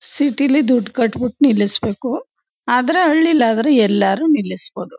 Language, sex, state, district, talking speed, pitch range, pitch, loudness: Kannada, female, Karnataka, Chamarajanagar, 145 wpm, 225-295 Hz, 255 Hz, -16 LUFS